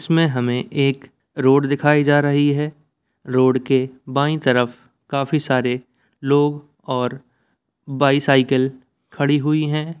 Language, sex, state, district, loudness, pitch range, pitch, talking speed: Hindi, male, Bihar, Samastipur, -19 LUFS, 130-145 Hz, 140 Hz, 120 wpm